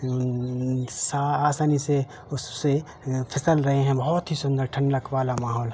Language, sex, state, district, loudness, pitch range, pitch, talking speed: Hindi, male, Uttar Pradesh, Hamirpur, -25 LUFS, 125-145 Hz, 135 Hz, 175 wpm